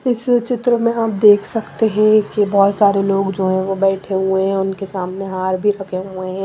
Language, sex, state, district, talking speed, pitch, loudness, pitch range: Hindi, female, Punjab, Pathankot, 225 wpm, 195 Hz, -16 LUFS, 190-215 Hz